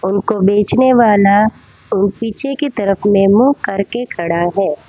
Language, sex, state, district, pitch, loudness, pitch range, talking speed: Hindi, female, Gujarat, Valsad, 205 Hz, -13 LUFS, 195-235 Hz, 135 wpm